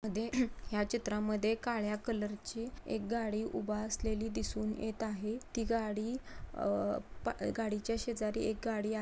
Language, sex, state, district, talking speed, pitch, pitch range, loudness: Marathi, female, Maharashtra, Pune, 155 wpm, 220 Hz, 215-230 Hz, -37 LUFS